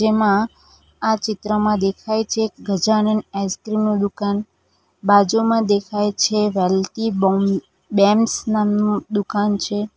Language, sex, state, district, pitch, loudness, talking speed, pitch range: Gujarati, female, Gujarat, Valsad, 210 Hz, -19 LUFS, 110 wpm, 200-215 Hz